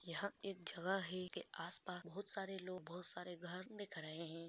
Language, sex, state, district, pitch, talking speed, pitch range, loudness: Hindi, female, Bihar, Saran, 180 Hz, 200 wpm, 170-195 Hz, -46 LUFS